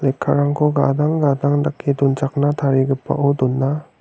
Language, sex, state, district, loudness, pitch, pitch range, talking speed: Garo, male, Meghalaya, West Garo Hills, -18 LUFS, 140 Hz, 135-145 Hz, 105 wpm